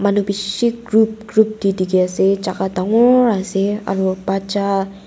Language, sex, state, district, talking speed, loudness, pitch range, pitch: Nagamese, female, Nagaland, Dimapur, 130 wpm, -17 LUFS, 195-220 Hz, 200 Hz